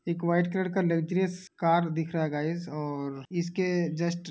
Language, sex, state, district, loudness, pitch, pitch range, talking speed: Hindi, male, Uttar Pradesh, Hamirpur, -29 LUFS, 170 Hz, 160-180 Hz, 195 wpm